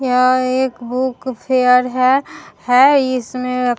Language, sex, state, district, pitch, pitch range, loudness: Hindi, female, Bihar, Vaishali, 255 Hz, 250-260 Hz, -15 LUFS